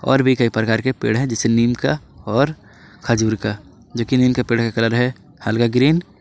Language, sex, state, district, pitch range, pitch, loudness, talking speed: Hindi, male, Jharkhand, Ranchi, 110-130 Hz, 115 Hz, -18 LUFS, 215 wpm